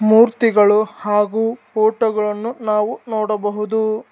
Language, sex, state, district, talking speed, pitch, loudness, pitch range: Kannada, male, Karnataka, Bangalore, 75 wpm, 215 Hz, -17 LUFS, 210-225 Hz